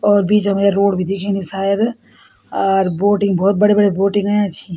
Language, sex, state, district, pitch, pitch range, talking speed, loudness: Garhwali, female, Uttarakhand, Tehri Garhwal, 200 Hz, 195-205 Hz, 190 wpm, -16 LUFS